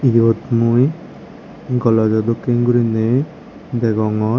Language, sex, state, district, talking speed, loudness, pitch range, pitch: Chakma, male, Tripura, West Tripura, 80 wpm, -16 LUFS, 115-125 Hz, 120 Hz